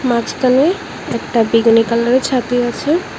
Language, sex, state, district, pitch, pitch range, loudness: Bengali, male, Tripura, West Tripura, 245 Hz, 230-260 Hz, -15 LUFS